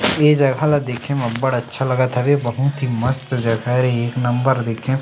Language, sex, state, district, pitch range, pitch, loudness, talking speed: Chhattisgarhi, male, Chhattisgarh, Sarguja, 120-135 Hz, 130 Hz, -18 LUFS, 205 wpm